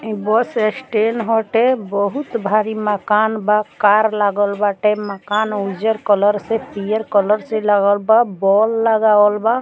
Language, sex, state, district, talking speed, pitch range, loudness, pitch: Bhojpuri, female, Bihar, Muzaffarpur, 145 wpm, 205-220 Hz, -16 LUFS, 210 Hz